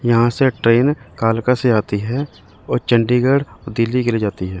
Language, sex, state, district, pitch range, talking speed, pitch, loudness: Hindi, male, Chandigarh, Chandigarh, 115-125 Hz, 180 wpm, 120 Hz, -17 LUFS